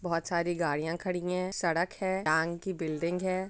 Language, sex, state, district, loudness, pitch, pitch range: Hindi, female, Uttar Pradesh, Jyotiba Phule Nagar, -31 LUFS, 175 Hz, 165-185 Hz